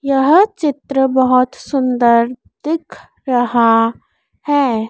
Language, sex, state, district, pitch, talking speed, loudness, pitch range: Hindi, female, Madhya Pradesh, Dhar, 260 Hz, 85 wpm, -15 LUFS, 240-285 Hz